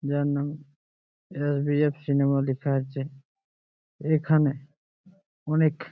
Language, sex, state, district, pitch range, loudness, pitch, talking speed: Bengali, male, West Bengal, Jalpaiguri, 140-155 Hz, -26 LUFS, 145 Hz, 110 wpm